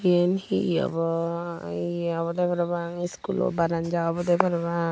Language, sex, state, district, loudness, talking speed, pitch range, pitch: Chakma, female, Tripura, Unakoti, -26 LUFS, 120 wpm, 165-175 Hz, 170 Hz